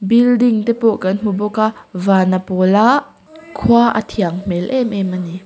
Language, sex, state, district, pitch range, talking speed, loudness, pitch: Mizo, female, Mizoram, Aizawl, 185-235 Hz, 210 wpm, -15 LUFS, 210 Hz